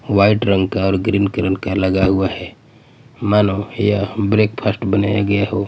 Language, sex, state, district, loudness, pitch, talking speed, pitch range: Hindi, male, Bihar, Patna, -17 LUFS, 100 Hz, 170 wpm, 95-105 Hz